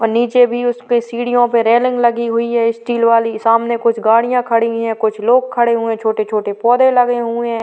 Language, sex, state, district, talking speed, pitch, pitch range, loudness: Hindi, female, Uttar Pradesh, Varanasi, 220 wpm, 235 Hz, 230-240 Hz, -14 LUFS